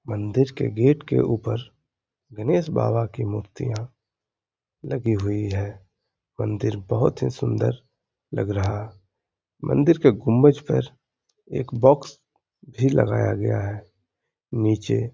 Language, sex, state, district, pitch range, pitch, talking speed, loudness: Hindi, male, Uttar Pradesh, Hamirpur, 105-125 Hz, 110 Hz, 120 wpm, -23 LUFS